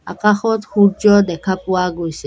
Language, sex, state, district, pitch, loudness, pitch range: Assamese, female, Assam, Kamrup Metropolitan, 195 Hz, -16 LUFS, 180-210 Hz